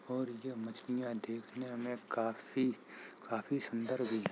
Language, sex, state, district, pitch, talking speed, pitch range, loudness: Hindi, male, Uttar Pradesh, Jalaun, 120 Hz, 140 wpm, 115-130 Hz, -39 LUFS